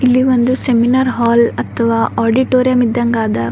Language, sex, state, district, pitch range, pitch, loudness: Kannada, female, Karnataka, Raichur, 235-255 Hz, 240 Hz, -13 LUFS